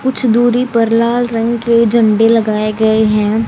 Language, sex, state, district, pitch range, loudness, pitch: Hindi, female, Haryana, Jhajjar, 220-235 Hz, -12 LUFS, 230 Hz